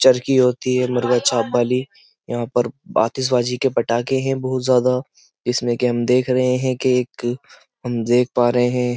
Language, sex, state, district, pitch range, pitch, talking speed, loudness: Hindi, male, Uttar Pradesh, Jyotiba Phule Nagar, 120-130 Hz, 125 Hz, 180 wpm, -19 LUFS